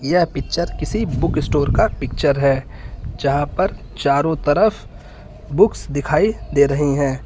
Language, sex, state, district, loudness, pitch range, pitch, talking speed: Hindi, male, Uttar Pradesh, Lucknow, -18 LUFS, 135-155 Hz, 140 Hz, 140 wpm